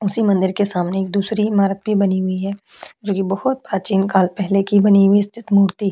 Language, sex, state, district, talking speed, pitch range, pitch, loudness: Hindi, female, Chhattisgarh, Korba, 215 wpm, 195-205 Hz, 200 Hz, -17 LUFS